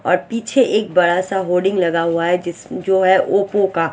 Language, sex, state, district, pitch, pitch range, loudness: Hindi, female, Odisha, Sambalpur, 185 Hz, 175-195 Hz, -17 LUFS